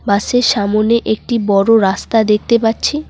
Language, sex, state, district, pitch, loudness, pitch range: Bengali, female, West Bengal, Cooch Behar, 225 Hz, -14 LUFS, 205-235 Hz